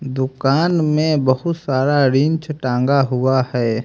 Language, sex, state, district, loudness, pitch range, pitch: Hindi, male, Haryana, Jhajjar, -17 LUFS, 130-155 Hz, 135 Hz